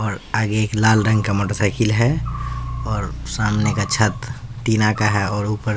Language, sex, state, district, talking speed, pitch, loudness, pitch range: Hindi, male, Bihar, Katihar, 200 wpm, 105 Hz, -19 LUFS, 105-110 Hz